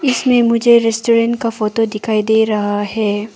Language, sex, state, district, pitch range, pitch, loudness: Hindi, female, Arunachal Pradesh, Papum Pare, 215-235 Hz, 225 Hz, -14 LUFS